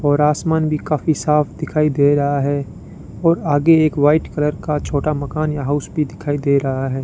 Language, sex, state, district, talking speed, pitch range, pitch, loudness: Hindi, male, Rajasthan, Bikaner, 205 wpm, 140-155 Hz, 150 Hz, -18 LUFS